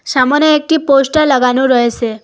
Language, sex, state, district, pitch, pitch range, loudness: Bengali, female, Assam, Hailakandi, 270 Hz, 250-305 Hz, -11 LUFS